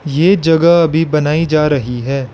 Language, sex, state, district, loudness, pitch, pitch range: Hindi, male, Arunachal Pradesh, Lower Dibang Valley, -13 LUFS, 155 Hz, 140-165 Hz